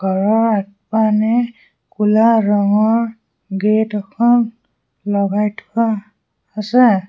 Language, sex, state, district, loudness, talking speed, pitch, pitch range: Assamese, male, Assam, Sonitpur, -16 LUFS, 75 wpm, 215 Hz, 200-225 Hz